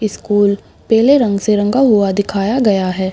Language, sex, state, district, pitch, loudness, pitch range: Hindi, female, Uttar Pradesh, Budaun, 205 Hz, -14 LUFS, 200-225 Hz